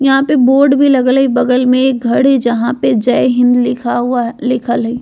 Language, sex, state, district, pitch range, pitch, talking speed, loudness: Bajjika, female, Bihar, Vaishali, 240-265 Hz, 250 Hz, 225 wpm, -12 LUFS